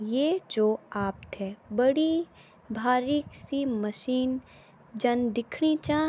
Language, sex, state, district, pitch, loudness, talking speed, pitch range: Garhwali, female, Uttarakhand, Tehri Garhwal, 250 Hz, -28 LUFS, 110 wpm, 220-290 Hz